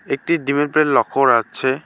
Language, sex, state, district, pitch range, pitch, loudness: Bengali, male, West Bengal, Alipurduar, 135-155 Hz, 140 Hz, -17 LUFS